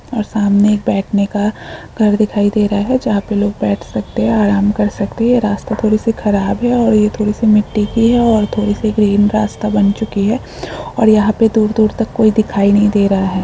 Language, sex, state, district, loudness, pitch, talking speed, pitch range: Hindi, female, Jharkhand, Jamtara, -14 LUFS, 210 Hz, 235 wpm, 205-220 Hz